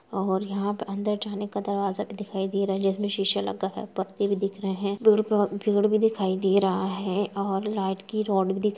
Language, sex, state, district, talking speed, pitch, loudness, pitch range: Hindi, female, Uttar Pradesh, Jalaun, 220 wpm, 200 Hz, -26 LUFS, 195-205 Hz